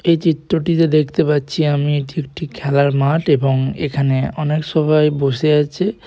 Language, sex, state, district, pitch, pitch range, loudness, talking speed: Bengali, male, West Bengal, Purulia, 150 Hz, 140-160 Hz, -17 LUFS, 160 wpm